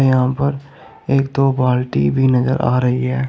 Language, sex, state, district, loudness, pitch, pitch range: Hindi, male, Uttar Pradesh, Shamli, -16 LUFS, 130 Hz, 125-135 Hz